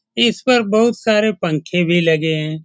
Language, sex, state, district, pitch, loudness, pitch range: Hindi, male, Bihar, Saran, 180 Hz, -16 LUFS, 160-220 Hz